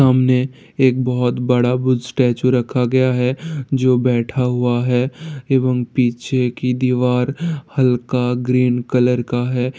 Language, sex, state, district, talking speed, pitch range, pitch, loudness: Hindi, male, Bihar, Jahanabad, 135 wpm, 125-130 Hz, 125 Hz, -17 LUFS